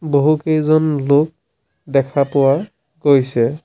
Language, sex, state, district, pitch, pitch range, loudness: Assamese, male, Assam, Sonitpur, 145 Hz, 140-155 Hz, -16 LUFS